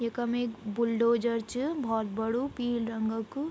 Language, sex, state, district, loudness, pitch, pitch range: Garhwali, female, Uttarakhand, Tehri Garhwal, -30 LUFS, 235 Hz, 225-245 Hz